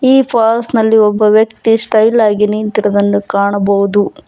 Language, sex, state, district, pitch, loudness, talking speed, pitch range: Kannada, female, Karnataka, Bangalore, 215 Hz, -11 LUFS, 110 wpm, 205-225 Hz